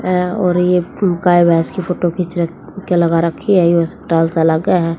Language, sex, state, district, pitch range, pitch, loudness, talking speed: Hindi, female, Haryana, Jhajjar, 170-180 Hz, 175 Hz, -15 LUFS, 205 wpm